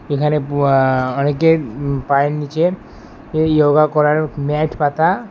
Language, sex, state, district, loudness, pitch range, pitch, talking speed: Bengali, male, West Bengal, Alipurduar, -16 LUFS, 140-155 Hz, 150 Hz, 100 wpm